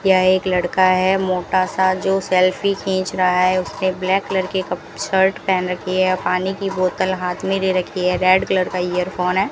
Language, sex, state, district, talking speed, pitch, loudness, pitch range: Hindi, female, Rajasthan, Bikaner, 210 wpm, 185 Hz, -18 LUFS, 185-190 Hz